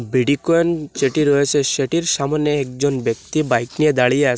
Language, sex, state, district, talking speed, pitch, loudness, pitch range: Bengali, male, Assam, Hailakandi, 150 wpm, 145 Hz, -18 LUFS, 130-155 Hz